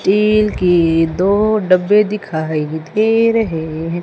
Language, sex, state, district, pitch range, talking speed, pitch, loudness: Hindi, female, Madhya Pradesh, Umaria, 165-210 Hz, 120 wpm, 185 Hz, -15 LUFS